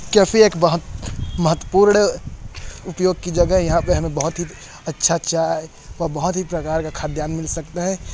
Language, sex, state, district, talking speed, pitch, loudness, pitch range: Hindi, male, Chhattisgarh, Korba, 170 wpm, 170 Hz, -19 LUFS, 160-180 Hz